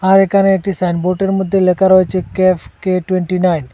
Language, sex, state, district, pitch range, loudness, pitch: Bengali, male, Assam, Hailakandi, 180-195 Hz, -14 LUFS, 185 Hz